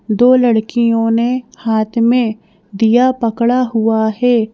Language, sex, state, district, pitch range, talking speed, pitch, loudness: Hindi, female, Madhya Pradesh, Bhopal, 220-245 Hz, 120 wpm, 230 Hz, -14 LUFS